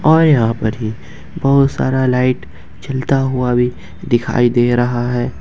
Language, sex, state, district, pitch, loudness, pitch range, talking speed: Hindi, male, Jharkhand, Ranchi, 125 Hz, -15 LUFS, 120-135 Hz, 155 wpm